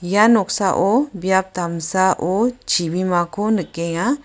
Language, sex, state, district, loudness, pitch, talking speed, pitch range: Garo, female, Meghalaya, West Garo Hills, -18 LUFS, 190 Hz, 85 wpm, 175-215 Hz